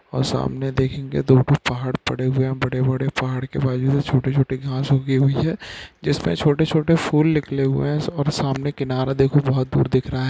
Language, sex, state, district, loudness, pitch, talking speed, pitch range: Hindi, male, Bihar, Saharsa, -20 LUFS, 135 Hz, 205 wpm, 130-145 Hz